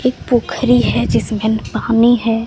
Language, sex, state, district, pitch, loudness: Hindi, female, Odisha, Sambalpur, 220 Hz, -15 LUFS